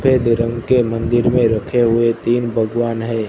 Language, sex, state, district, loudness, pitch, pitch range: Hindi, male, Gujarat, Gandhinagar, -16 LUFS, 115 Hz, 115-120 Hz